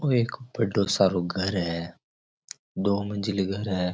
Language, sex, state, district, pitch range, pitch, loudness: Rajasthani, male, Rajasthan, Churu, 95-105 Hz, 100 Hz, -26 LUFS